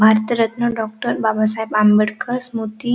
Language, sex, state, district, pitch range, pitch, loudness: Marathi, female, Maharashtra, Dhule, 215-235 Hz, 220 Hz, -18 LUFS